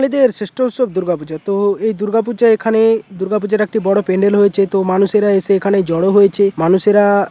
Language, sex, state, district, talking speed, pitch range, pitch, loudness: Bengali, male, West Bengal, Paschim Medinipur, 165 wpm, 195-220 Hz, 200 Hz, -14 LUFS